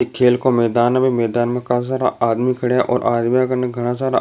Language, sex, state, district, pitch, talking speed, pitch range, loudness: Rajasthani, male, Rajasthan, Nagaur, 125 Hz, 255 wpm, 120-130 Hz, -17 LUFS